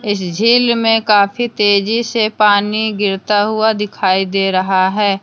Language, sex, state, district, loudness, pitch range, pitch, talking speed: Hindi, female, Jharkhand, Deoghar, -14 LUFS, 195-220 Hz, 210 Hz, 150 wpm